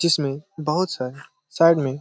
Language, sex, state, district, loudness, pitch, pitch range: Hindi, male, Jharkhand, Sahebganj, -22 LUFS, 150 Hz, 135-165 Hz